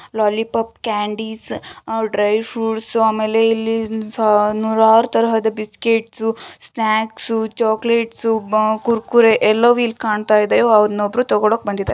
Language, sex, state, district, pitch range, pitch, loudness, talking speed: Kannada, female, Karnataka, Shimoga, 215-225 Hz, 220 Hz, -17 LUFS, 100 wpm